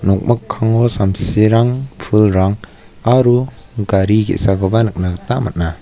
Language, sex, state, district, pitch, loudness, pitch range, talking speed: Garo, male, Meghalaya, West Garo Hills, 110 Hz, -15 LUFS, 95-120 Hz, 95 wpm